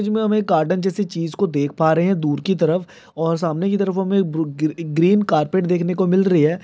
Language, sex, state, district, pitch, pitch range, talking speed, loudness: Hindi, male, Bihar, Sitamarhi, 180 Hz, 160-190 Hz, 255 wpm, -19 LUFS